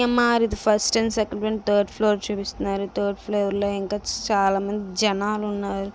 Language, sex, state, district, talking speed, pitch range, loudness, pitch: Telugu, female, Andhra Pradesh, Visakhapatnam, 150 wpm, 200-215 Hz, -23 LUFS, 205 Hz